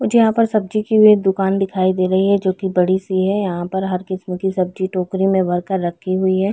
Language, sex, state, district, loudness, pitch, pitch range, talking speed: Hindi, female, Chhattisgarh, Bilaspur, -17 LUFS, 190 Hz, 185-195 Hz, 265 wpm